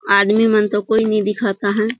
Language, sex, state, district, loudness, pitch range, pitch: Surgujia, female, Chhattisgarh, Sarguja, -16 LUFS, 205-220 Hz, 210 Hz